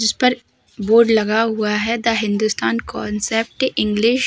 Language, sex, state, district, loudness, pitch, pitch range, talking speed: Hindi, female, Uttar Pradesh, Hamirpur, -18 LUFS, 225 Hz, 210-230 Hz, 140 wpm